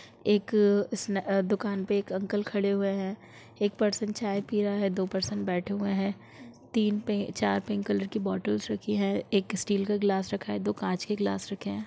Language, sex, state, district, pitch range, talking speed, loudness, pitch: Hindi, female, Chhattisgarh, Sukma, 175-205 Hz, 200 wpm, -29 LUFS, 200 Hz